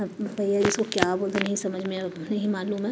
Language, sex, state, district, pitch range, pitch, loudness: Hindi, female, Maharashtra, Mumbai Suburban, 190-210 Hz, 200 Hz, -26 LUFS